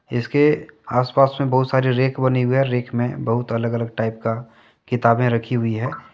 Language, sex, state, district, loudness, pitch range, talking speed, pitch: Hindi, male, Jharkhand, Deoghar, -20 LUFS, 115-130 Hz, 195 wpm, 125 Hz